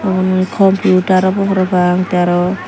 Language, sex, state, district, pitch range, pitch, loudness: Chakma, female, Tripura, Dhalai, 180-190 Hz, 185 Hz, -13 LUFS